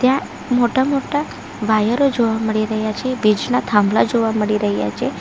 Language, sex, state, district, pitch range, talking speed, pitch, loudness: Gujarati, female, Gujarat, Valsad, 210-255 Hz, 150 wpm, 220 Hz, -18 LUFS